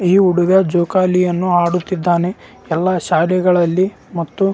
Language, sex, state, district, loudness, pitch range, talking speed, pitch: Kannada, male, Karnataka, Raichur, -15 LUFS, 175-185 Hz, 200 wpm, 180 Hz